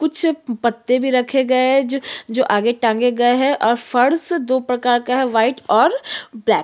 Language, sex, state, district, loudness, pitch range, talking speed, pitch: Hindi, female, Chhattisgarh, Sukma, -17 LUFS, 240-265 Hz, 180 wpm, 250 Hz